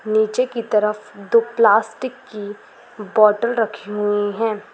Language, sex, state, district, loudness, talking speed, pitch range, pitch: Hindi, female, Chhattisgarh, Balrampur, -18 LUFS, 140 wpm, 210-235 Hz, 215 Hz